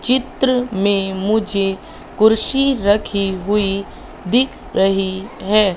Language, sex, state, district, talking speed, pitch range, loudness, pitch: Hindi, female, Madhya Pradesh, Katni, 95 wpm, 195-245 Hz, -17 LUFS, 205 Hz